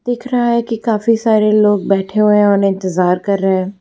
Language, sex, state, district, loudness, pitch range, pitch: Hindi, female, Gujarat, Valsad, -14 LUFS, 195-230 Hz, 210 Hz